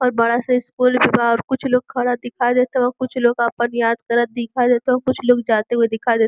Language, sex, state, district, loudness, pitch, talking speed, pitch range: Bhojpuri, female, Uttar Pradesh, Gorakhpur, -18 LUFS, 245 Hz, 265 wpm, 235-250 Hz